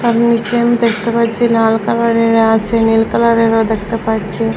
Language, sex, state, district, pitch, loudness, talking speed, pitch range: Bengali, female, Assam, Hailakandi, 230 Hz, -13 LUFS, 155 wpm, 225-235 Hz